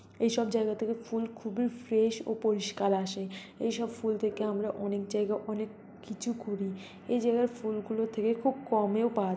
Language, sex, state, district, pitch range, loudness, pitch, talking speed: Bengali, female, West Bengal, North 24 Parganas, 210-230 Hz, -32 LUFS, 220 Hz, 165 wpm